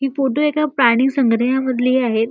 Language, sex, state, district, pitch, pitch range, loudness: Marathi, male, Maharashtra, Chandrapur, 260 Hz, 245-275 Hz, -16 LUFS